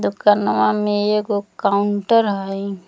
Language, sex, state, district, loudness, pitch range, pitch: Magahi, female, Jharkhand, Palamu, -18 LUFS, 195-210 Hz, 205 Hz